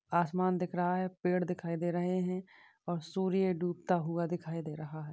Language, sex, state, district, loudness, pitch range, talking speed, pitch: Hindi, female, Maharashtra, Dhule, -34 LUFS, 170-185 Hz, 200 wpm, 175 Hz